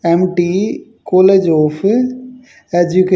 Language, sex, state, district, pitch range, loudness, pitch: Hindi, male, Haryana, Jhajjar, 175-245 Hz, -13 LUFS, 185 Hz